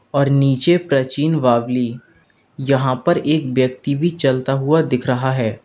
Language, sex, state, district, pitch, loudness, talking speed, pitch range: Hindi, male, Uttar Pradesh, Lalitpur, 130 Hz, -17 LUFS, 150 wpm, 125-140 Hz